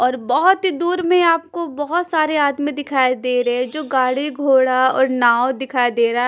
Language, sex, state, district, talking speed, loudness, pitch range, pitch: Hindi, female, Punjab, Kapurthala, 210 wpm, -17 LUFS, 255-315 Hz, 270 Hz